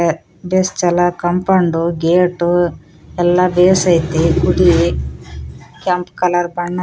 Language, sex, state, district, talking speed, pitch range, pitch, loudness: Kannada, female, Karnataka, Raichur, 80 wpm, 170-180 Hz, 175 Hz, -15 LUFS